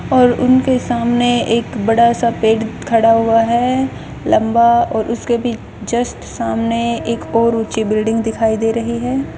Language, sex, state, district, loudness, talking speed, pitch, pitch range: Hindi, female, Himachal Pradesh, Shimla, -15 LUFS, 155 wpm, 230 Hz, 225-240 Hz